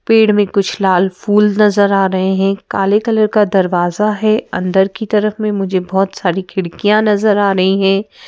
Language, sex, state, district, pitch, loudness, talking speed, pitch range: Hindi, female, Madhya Pradesh, Bhopal, 200 Hz, -14 LUFS, 190 wpm, 190-210 Hz